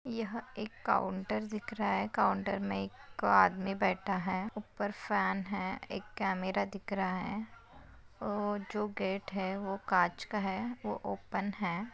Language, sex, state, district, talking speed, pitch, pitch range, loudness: Hindi, female, Maharashtra, Nagpur, 155 wpm, 200 Hz, 190-210 Hz, -34 LUFS